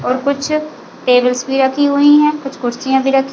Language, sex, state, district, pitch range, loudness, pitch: Hindi, female, Chhattisgarh, Bilaspur, 255-285 Hz, -14 LUFS, 270 Hz